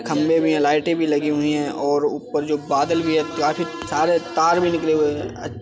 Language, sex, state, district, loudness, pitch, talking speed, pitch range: Hindi, male, Uttar Pradesh, Budaun, -20 LUFS, 150 Hz, 225 wpm, 145-165 Hz